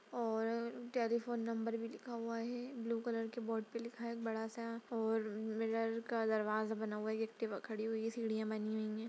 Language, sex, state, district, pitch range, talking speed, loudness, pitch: Hindi, female, Uttar Pradesh, Budaun, 220-235 Hz, 200 wpm, -40 LUFS, 225 Hz